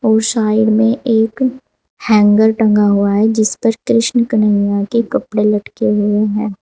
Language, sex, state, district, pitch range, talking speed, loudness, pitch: Hindi, female, Uttar Pradesh, Saharanpur, 210-230 Hz, 155 wpm, -13 LUFS, 220 Hz